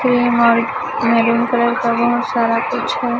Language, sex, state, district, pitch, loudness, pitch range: Hindi, male, Chhattisgarh, Raipur, 235 Hz, -16 LUFS, 230-240 Hz